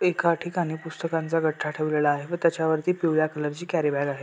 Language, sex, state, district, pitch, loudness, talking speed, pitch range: Marathi, male, Maharashtra, Solapur, 160 Hz, -25 LUFS, 200 wpm, 150-170 Hz